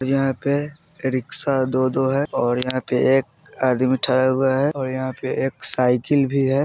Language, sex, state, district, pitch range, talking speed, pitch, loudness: Bajjika, male, Bihar, Vaishali, 130-140 Hz, 180 wpm, 130 Hz, -21 LUFS